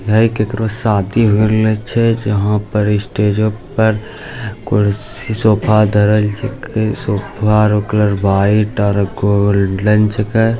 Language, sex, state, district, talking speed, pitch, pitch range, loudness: Angika, male, Bihar, Bhagalpur, 125 wpm, 105 Hz, 105-110 Hz, -14 LUFS